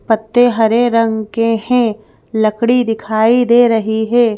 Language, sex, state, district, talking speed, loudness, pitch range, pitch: Hindi, female, Madhya Pradesh, Bhopal, 135 wpm, -13 LUFS, 220-240 Hz, 225 Hz